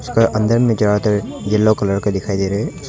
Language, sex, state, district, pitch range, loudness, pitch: Hindi, male, Arunachal Pradesh, Longding, 100-115 Hz, -17 LUFS, 105 Hz